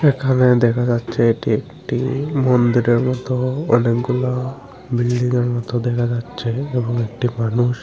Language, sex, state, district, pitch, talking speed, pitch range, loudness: Bengali, male, Tripura, Unakoti, 120 Hz, 130 wpm, 120-130 Hz, -19 LUFS